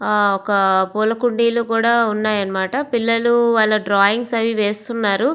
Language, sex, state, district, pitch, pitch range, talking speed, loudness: Telugu, female, Andhra Pradesh, Visakhapatnam, 220 Hz, 205-235 Hz, 125 wpm, -17 LUFS